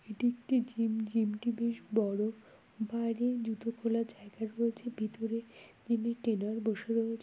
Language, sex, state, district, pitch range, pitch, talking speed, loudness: Bengali, female, West Bengal, Kolkata, 220-235 Hz, 230 Hz, 160 wpm, -34 LUFS